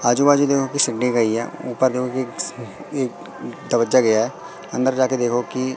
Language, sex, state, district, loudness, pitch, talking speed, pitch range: Hindi, male, Madhya Pradesh, Katni, -20 LUFS, 125 Hz, 125 wpm, 120-130 Hz